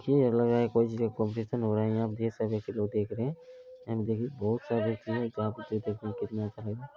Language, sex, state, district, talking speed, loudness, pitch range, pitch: Maithili, male, Bihar, Araria, 190 wpm, -31 LUFS, 110-120 Hz, 115 Hz